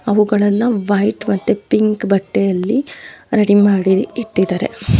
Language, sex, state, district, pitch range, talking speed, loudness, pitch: Kannada, female, Karnataka, Dharwad, 195-215 Hz, 95 wpm, -16 LUFS, 205 Hz